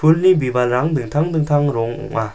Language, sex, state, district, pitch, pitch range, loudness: Garo, male, Meghalaya, South Garo Hills, 145 Hz, 125-160 Hz, -17 LUFS